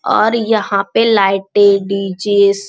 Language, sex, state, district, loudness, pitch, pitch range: Hindi, male, Bihar, Jamui, -13 LUFS, 200 Hz, 195-215 Hz